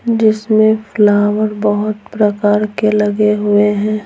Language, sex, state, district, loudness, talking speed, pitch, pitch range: Hindi, female, Bihar, Patna, -13 LUFS, 120 wpm, 210 Hz, 210-215 Hz